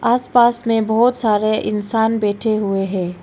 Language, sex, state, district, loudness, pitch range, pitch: Hindi, female, Arunachal Pradesh, Longding, -17 LUFS, 205-235 Hz, 220 Hz